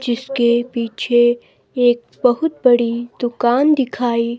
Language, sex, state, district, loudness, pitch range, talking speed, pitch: Hindi, female, Himachal Pradesh, Shimla, -17 LUFS, 235-250 Hz, 95 wpm, 240 Hz